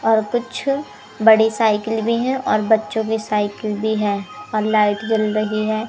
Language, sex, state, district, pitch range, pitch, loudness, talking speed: Hindi, female, Madhya Pradesh, Umaria, 210-225 Hz, 220 Hz, -19 LUFS, 175 wpm